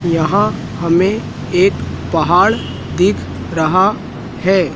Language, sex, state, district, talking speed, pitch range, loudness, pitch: Hindi, male, Madhya Pradesh, Dhar, 90 wpm, 155-195 Hz, -15 LUFS, 175 Hz